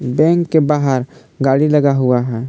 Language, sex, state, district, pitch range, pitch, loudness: Hindi, male, Jharkhand, Palamu, 125-150 Hz, 135 Hz, -15 LUFS